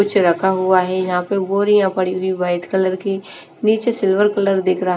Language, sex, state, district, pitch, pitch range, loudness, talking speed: Hindi, female, Bihar, West Champaran, 190 Hz, 185-200 Hz, -17 LUFS, 215 wpm